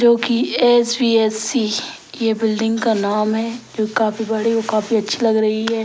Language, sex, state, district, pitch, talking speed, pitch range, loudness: Hindi, male, Bihar, Sitamarhi, 225 Hz, 165 wpm, 220-235 Hz, -18 LUFS